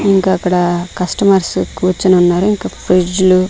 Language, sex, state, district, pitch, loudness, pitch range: Telugu, female, Andhra Pradesh, Manyam, 185 Hz, -13 LUFS, 180-190 Hz